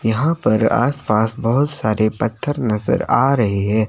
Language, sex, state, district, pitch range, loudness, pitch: Hindi, male, Himachal Pradesh, Shimla, 110-135 Hz, -17 LUFS, 115 Hz